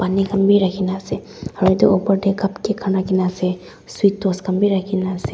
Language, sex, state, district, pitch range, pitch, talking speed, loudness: Nagamese, female, Nagaland, Dimapur, 185-195 Hz, 190 Hz, 215 wpm, -18 LUFS